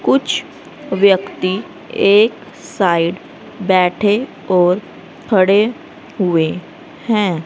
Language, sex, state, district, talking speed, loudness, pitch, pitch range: Hindi, female, Haryana, Rohtak, 70 wpm, -15 LUFS, 195 Hz, 180-215 Hz